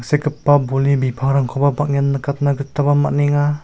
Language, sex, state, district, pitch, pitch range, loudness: Garo, male, Meghalaya, South Garo Hills, 140 Hz, 135-145 Hz, -17 LUFS